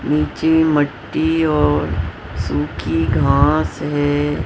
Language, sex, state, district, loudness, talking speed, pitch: Hindi, male, Maharashtra, Mumbai Suburban, -17 LUFS, 80 wpm, 145 Hz